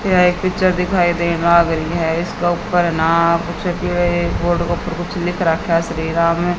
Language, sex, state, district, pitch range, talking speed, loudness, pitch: Hindi, female, Haryana, Jhajjar, 170-175 Hz, 200 wpm, -17 LUFS, 175 Hz